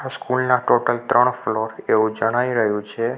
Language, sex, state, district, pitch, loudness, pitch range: Gujarati, male, Gujarat, Navsari, 120 Hz, -20 LUFS, 110-125 Hz